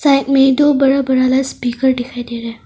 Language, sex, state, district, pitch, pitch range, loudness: Hindi, female, Arunachal Pradesh, Longding, 265 Hz, 245-275 Hz, -14 LUFS